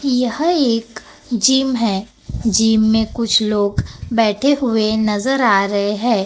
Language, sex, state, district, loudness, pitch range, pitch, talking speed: Hindi, female, Maharashtra, Gondia, -16 LUFS, 215-250 Hz, 225 Hz, 135 wpm